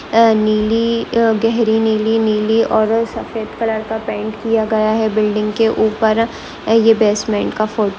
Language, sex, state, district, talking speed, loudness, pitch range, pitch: Hindi, female, West Bengal, Malda, 165 wpm, -15 LUFS, 215-225 Hz, 220 Hz